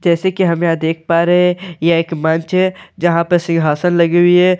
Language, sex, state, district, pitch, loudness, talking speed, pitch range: Hindi, male, Bihar, Katihar, 170 Hz, -14 LUFS, 250 wpm, 165-180 Hz